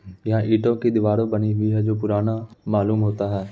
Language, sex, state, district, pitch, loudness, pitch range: Hindi, male, Bihar, Muzaffarpur, 110 Hz, -22 LUFS, 105-110 Hz